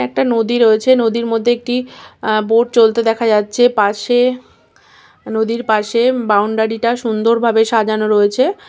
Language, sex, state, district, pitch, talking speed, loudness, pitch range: Bengali, female, West Bengal, Kolkata, 225 Hz, 130 wpm, -14 LUFS, 215-240 Hz